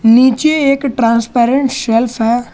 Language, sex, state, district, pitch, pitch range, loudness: Hindi, male, Jharkhand, Garhwa, 245 Hz, 230-270 Hz, -12 LUFS